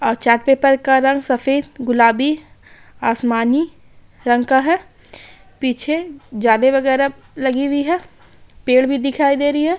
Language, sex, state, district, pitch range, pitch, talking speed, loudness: Hindi, female, Bihar, Gaya, 250-285 Hz, 270 Hz, 140 wpm, -17 LUFS